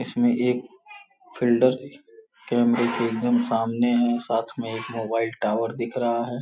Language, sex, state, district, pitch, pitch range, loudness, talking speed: Hindi, male, Uttar Pradesh, Gorakhpur, 120 Hz, 115-125 Hz, -24 LUFS, 150 wpm